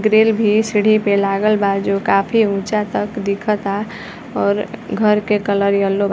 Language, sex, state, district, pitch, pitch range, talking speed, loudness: Bhojpuri, female, Uttar Pradesh, Varanasi, 210 Hz, 200-215 Hz, 165 wpm, -17 LUFS